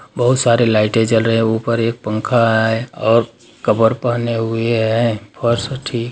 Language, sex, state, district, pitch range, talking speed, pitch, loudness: Hindi, male, Bihar, Darbhanga, 110-120 Hz, 175 wpm, 115 Hz, -16 LUFS